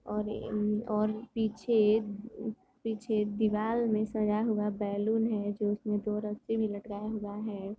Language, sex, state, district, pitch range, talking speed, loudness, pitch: Hindi, female, Uttar Pradesh, Gorakhpur, 210-220 Hz, 145 wpm, -32 LUFS, 215 Hz